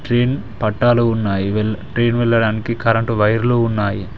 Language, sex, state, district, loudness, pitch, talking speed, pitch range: Telugu, male, Telangana, Mahabubabad, -17 LUFS, 115 Hz, 130 wpm, 105-120 Hz